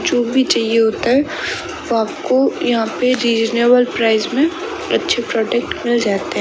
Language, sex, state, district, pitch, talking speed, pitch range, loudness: Hindi, female, Rajasthan, Bikaner, 240 Hz, 160 wpm, 225-270 Hz, -16 LUFS